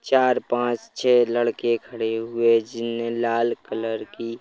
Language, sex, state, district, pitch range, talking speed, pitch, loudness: Hindi, male, Chhattisgarh, Rajnandgaon, 115-120 Hz, 150 wpm, 115 Hz, -23 LUFS